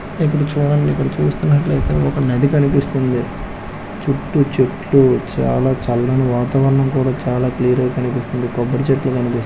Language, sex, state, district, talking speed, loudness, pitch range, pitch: Telugu, male, Andhra Pradesh, Krishna, 120 wpm, -17 LUFS, 125-140 Hz, 130 Hz